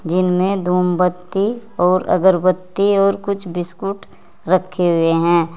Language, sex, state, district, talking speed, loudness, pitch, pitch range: Hindi, female, Uttar Pradesh, Saharanpur, 110 wpm, -16 LUFS, 180 Hz, 175-195 Hz